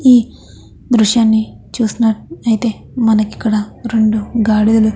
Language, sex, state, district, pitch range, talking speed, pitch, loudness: Telugu, female, Andhra Pradesh, Chittoor, 215-230 Hz, 85 wpm, 220 Hz, -14 LUFS